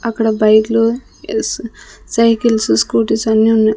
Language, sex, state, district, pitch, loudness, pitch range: Telugu, female, Andhra Pradesh, Sri Satya Sai, 225 Hz, -14 LUFS, 220-230 Hz